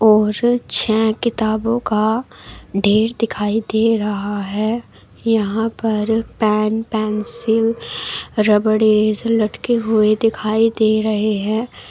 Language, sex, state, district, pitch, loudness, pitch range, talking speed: Hindi, female, Uttar Pradesh, Shamli, 220 Hz, -18 LUFS, 215-225 Hz, 100 wpm